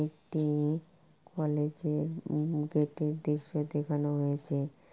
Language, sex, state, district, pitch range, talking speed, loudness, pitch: Bengali, female, West Bengal, Purulia, 150-155 Hz, 110 wpm, -33 LUFS, 150 Hz